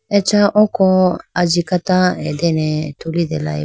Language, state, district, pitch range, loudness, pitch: Idu Mishmi, Arunachal Pradesh, Lower Dibang Valley, 155-190 Hz, -16 LUFS, 175 Hz